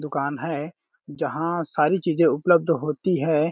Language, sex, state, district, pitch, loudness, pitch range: Hindi, male, Chhattisgarh, Balrampur, 165 Hz, -23 LUFS, 150-175 Hz